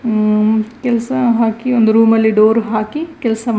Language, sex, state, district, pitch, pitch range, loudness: Kannada, female, Karnataka, Dakshina Kannada, 225 Hz, 220-240 Hz, -14 LUFS